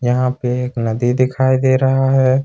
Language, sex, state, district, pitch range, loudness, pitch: Hindi, male, Jharkhand, Ranchi, 125-130 Hz, -16 LUFS, 130 Hz